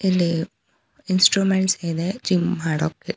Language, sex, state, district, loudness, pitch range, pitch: Kannada, female, Karnataka, Bangalore, -21 LUFS, 165-190 Hz, 180 Hz